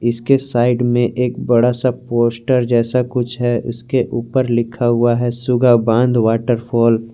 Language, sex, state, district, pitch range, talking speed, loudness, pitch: Hindi, male, Jharkhand, Garhwa, 120-125 Hz, 160 wpm, -16 LUFS, 120 Hz